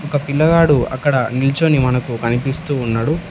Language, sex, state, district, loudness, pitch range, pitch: Telugu, male, Telangana, Hyderabad, -16 LUFS, 125-150 Hz, 135 Hz